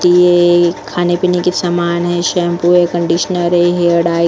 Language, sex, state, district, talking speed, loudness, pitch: Hindi, female, Goa, North and South Goa, 180 wpm, -13 LUFS, 175 Hz